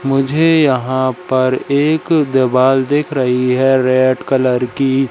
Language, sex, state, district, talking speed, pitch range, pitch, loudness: Hindi, male, Madhya Pradesh, Katni, 130 wpm, 130-140 Hz, 130 Hz, -14 LUFS